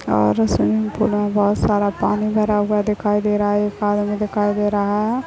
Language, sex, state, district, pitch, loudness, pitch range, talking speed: Hindi, female, Chhattisgarh, Bilaspur, 205 Hz, -19 LUFS, 205-210 Hz, 225 wpm